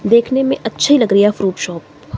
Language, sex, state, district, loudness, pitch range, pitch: Hindi, female, Himachal Pradesh, Shimla, -14 LUFS, 190-255 Hz, 220 Hz